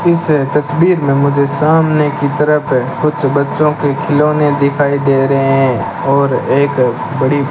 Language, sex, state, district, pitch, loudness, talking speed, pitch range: Hindi, male, Rajasthan, Bikaner, 145 Hz, -13 LUFS, 150 wpm, 135-150 Hz